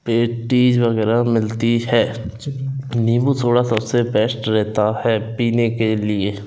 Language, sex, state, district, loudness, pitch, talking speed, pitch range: Hindi, male, Rajasthan, Jaipur, -18 LUFS, 115 Hz, 120 wpm, 110-120 Hz